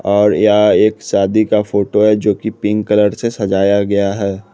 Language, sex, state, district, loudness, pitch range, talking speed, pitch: Hindi, male, Bihar, West Champaran, -14 LUFS, 100-105 Hz, 200 wpm, 105 Hz